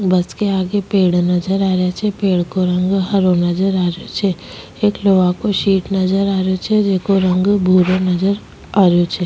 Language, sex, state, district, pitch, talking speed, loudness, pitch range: Rajasthani, female, Rajasthan, Nagaur, 190 Hz, 195 wpm, -16 LUFS, 180-195 Hz